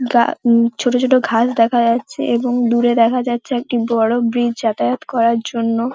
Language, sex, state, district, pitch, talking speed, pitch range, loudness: Bengali, female, West Bengal, Paschim Medinipur, 235 Hz, 170 wpm, 230-245 Hz, -16 LUFS